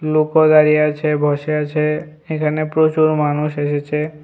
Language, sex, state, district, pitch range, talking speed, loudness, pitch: Bengali, male, Tripura, West Tripura, 150-155 Hz, 125 wpm, -16 LUFS, 150 Hz